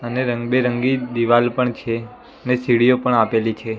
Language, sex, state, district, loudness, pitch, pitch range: Gujarati, male, Gujarat, Gandhinagar, -19 LUFS, 120 Hz, 115-125 Hz